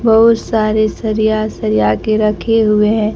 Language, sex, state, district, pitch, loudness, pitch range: Hindi, female, Bihar, Kaimur, 215 Hz, -14 LUFS, 210-220 Hz